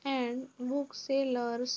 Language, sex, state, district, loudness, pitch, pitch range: Marathi, female, Maharashtra, Sindhudurg, -34 LUFS, 255 Hz, 245-275 Hz